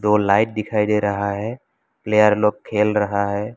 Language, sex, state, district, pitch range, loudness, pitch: Hindi, male, Assam, Kamrup Metropolitan, 100-105 Hz, -19 LUFS, 105 Hz